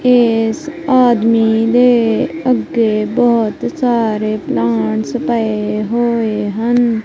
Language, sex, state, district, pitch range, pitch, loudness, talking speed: Punjabi, female, Punjab, Kapurthala, 215-245 Hz, 230 Hz, -14 LUFS, 85 wpm